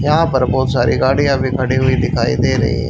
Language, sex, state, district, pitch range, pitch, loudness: Hindi, male, Haryana, Rohtak, 130-140 Hz, 130 Hz, -15 LUFS